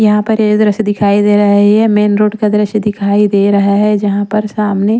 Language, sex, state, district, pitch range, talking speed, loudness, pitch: Hindi, female, Punjab, Pathankot, 205-210 Hz, 240 wpm, -11 LUFS, 210 Hz